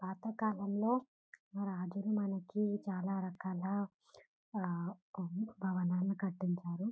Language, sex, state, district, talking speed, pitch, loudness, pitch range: Telugu, female, Telangana, Karimnagar, 95 wpm, 195 Hz, -39 LUFS, 185-205 Hz